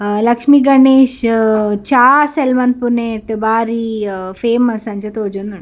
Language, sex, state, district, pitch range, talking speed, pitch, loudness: Tulu, female, Karnataka, Dakshina Kannada, 215-250 Hz, 85 wpm, 230 Hz, -13 LUFS